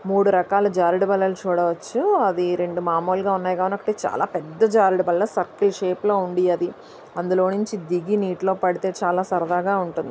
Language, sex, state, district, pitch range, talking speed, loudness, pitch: Telugu, female, Andhra Pradesh, Anantapur, 175-195 Hz, 165 wpm, -21 LUFS, 185 Hz